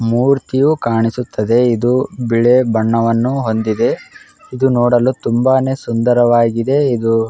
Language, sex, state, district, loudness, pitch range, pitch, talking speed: Kannada, male, Karnataka, Raichur, -14 LUFS, 115-130 Hz, 120 Hz, 100 wpm